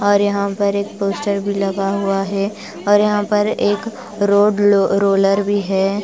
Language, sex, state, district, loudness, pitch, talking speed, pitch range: Hindi, female, Bihar, West Champaran, -17 LUFS, 200 Hz, 180 wpm, 195-205 Hz